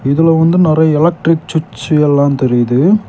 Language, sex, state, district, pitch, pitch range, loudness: Tamil, male, Tamil Nadu, Kanyakumari, 155 Hz, 140-165 Hz, -12 LUFS